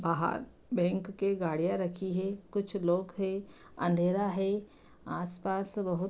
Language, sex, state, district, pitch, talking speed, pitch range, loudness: Hindi, female, Bihar, Begusarai, 190 Hz, 140 wpm, 175-200 Hz, -33 LUFS